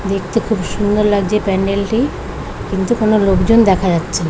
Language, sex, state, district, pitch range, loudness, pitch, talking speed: Bengali, female, West Bengal, Kolkata, 190-215 Hz, -15 LUFS, 200 Hz, 170 wpm